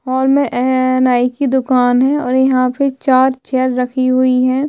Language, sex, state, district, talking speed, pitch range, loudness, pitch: Hindi, female, Chhattisgarh, Sukma, 190 wpm, 255-265 Hz, -14 LUFS, 255 Hz